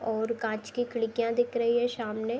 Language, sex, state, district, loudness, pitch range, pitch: Hindi, female, Uttar Pradesh, Deoria, -29 LUFS, 225-240 Hz, 235 Hz